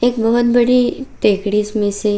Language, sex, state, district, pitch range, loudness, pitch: Hindi, female, Bihar, Bhagalpur, 210-245 Hz, -15 LUFS, 225 Hz